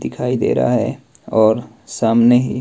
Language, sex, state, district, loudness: Hindi, male, Himachal Pradesh, Shimla, -16 LUFS